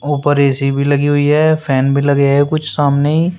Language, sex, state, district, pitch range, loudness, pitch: Hindi, male, Uttar Pradesh, Shamli, 140-150 Hz, -13 LUFS, 145 Hz